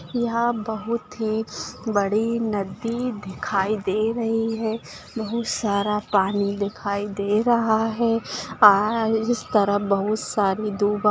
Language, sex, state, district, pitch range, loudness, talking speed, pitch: Hindi, female, Maharashtra, Chandrapur, 205-225 Hz, -23 LUFS, 125 wpm, 215 Hz